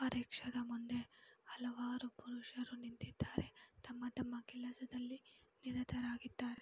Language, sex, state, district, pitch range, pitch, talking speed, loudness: Kannada, female, Karnataka, Mysore, 245-250 Hz, 245 Hz, 80 wpm, -47 LUFS